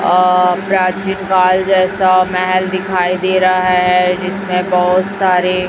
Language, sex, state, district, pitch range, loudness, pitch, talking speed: Hindi, female, Chhattisgarh, Raipur, 180-185 Hz, -13 LUFS, 185 Hz, 125 wpm